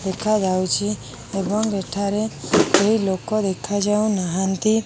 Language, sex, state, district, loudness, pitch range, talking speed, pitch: Odia, female, Odisha, Khordha, -21 LUFS, 185-215 Hz, 85 wpm, 195 Hz